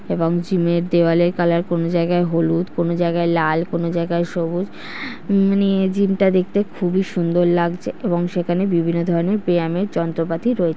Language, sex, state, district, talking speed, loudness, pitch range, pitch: Bengali, female, West Bengal, North 24 Parganas, 155 wpm, -19 LUFS, 170-185 Hz, 175 Hz